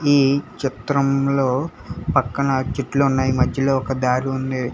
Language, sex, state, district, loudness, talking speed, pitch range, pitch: Telugu, male, Telangana, Hyderabad, -20 LUFS, 115 wpm, 130-140 Hz, 135 Hz